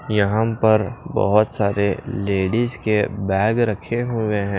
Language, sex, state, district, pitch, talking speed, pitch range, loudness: Hindi, male, Maharashtra, Washim, 110 Hz, 130 wpm, 100-115 Hz, -20 LUFS